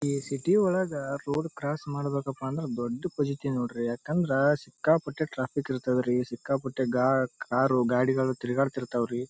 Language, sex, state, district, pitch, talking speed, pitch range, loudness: Kannada, male, Karnataka, Raichur, 135 Hz, 125 wpm, 125-145 Hz, -28 LUFS